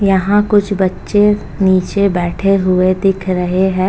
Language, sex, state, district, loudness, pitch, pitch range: Hindi, female, Uttar Pradesh, Jalaun, -14 LUFS, 190 Hz, 185-200 Hz